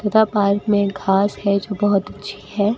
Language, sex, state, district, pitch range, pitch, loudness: Hindi, female, Rajasthan, Bikaner, 200-210 Hz, 205 Hz, -19 LUFS